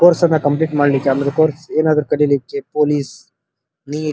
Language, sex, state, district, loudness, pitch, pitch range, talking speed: Kannada, male, Karnataka, Dharwad, -16 LUFS, 150 Hz, 140-155 Hz, 160 wpm